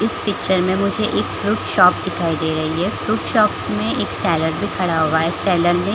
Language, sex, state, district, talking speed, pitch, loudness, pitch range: Hindi, female, Chhattisgarh, Bilaspur, 220 wpm, 175 Hz, -18 LUFS, 160-190 Hz